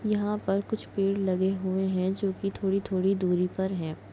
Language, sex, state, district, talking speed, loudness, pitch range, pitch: Hindi, female, Chhattisgarh, Kabirdham, 190 wpm, -28 LUFS, 185-195 Hz, 195 Hz